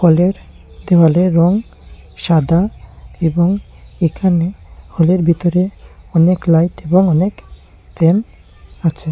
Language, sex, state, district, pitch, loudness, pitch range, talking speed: Bengali, male, Tripura, Unakoti, 170 Hz, -15 LUFS, 165-185 Hz, 90 wpm